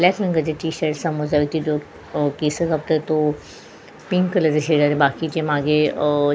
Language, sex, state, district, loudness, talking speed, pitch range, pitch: Marathi, female, Goa, North and South Goa, -20 LUFS, 130 wpm, 150-160 Hz, 155 Hz